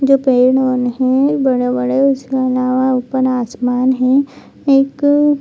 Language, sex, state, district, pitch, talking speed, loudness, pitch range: Hindi, female, Bihar, Jamui, 260 Hz, 135 wpm, -14 LUFS, 255-275 Hz